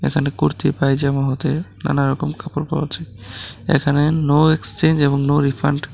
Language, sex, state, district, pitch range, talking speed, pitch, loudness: Bengali, male, Tripura, West Tripura, 140-150 Hz, 160 wpm, 145 Hz, -18 LUFS